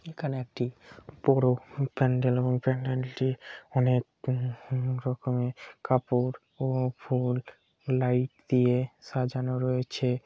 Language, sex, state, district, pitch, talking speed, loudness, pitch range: Bengali, male, West Bengal, Kolkata, 130 Hz, 90 wpm, -29 LUFS, 125-130 Hz